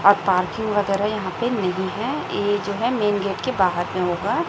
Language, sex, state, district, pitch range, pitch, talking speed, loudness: Hindi, female, Chhattisgarh, Raipur, 190-215 Hz, 200 Hz, 215 wpm, -22 LUFS